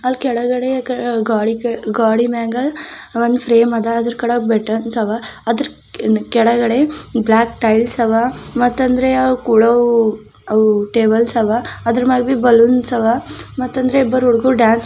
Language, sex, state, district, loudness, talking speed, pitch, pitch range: Kannada, female, Karnataka, Bidar, -15 LUFS, 135 wpm, 235 Hz, 225-250 Hz